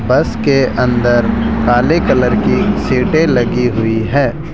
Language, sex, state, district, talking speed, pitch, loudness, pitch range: Hindi, male, Rajasthan, Jaipur, 130 wpm, 120 Hz, -13 LUFS, 115-135 Hz